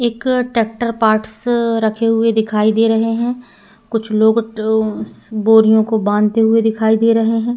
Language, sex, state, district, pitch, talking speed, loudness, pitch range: Hindi, female, Uttar Pradesh, Etah, 225 Hz, 160 wpm, -15 LUFS, 220-230 Hz